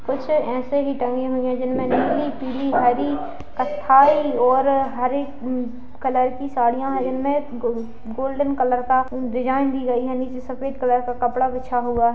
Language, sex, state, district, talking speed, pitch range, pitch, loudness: Hindi, male, Bihar, Saharsa, 170 wpm, 250-275 Hz, 255 Hz, -21 LUFS